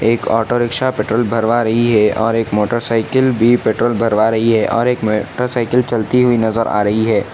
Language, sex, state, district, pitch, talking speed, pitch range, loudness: Hindi, male, Uttar Pradesh, Etah, 115 Hz, 195 wpm, 110-120 Hz, -15 LUFS